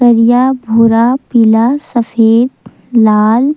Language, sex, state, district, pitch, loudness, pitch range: Chhattisgarhi, female, Chhattisgarh, Sukma, 235 Hz, -10 LUFS, 225-250 Hz